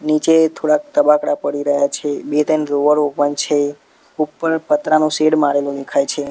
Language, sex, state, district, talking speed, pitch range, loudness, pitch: Gujarati, male, Gujarat, Gandhinagar, 150 wpm, 145-155 Hz, -17 LUFS, 150 Hz